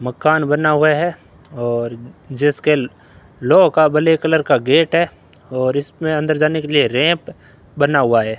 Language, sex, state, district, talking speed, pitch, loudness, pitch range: Hindi, male, Rajasthan, Bikaner, 165 wpm, 150 Hz, -16 LUFS, 130-155 Hz